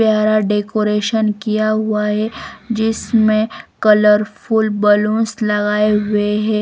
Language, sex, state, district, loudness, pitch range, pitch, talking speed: Hindi, female, Bihar, West Champaran, -16 LUFS, 210-220 Hz, 215 Hz, 100 wpm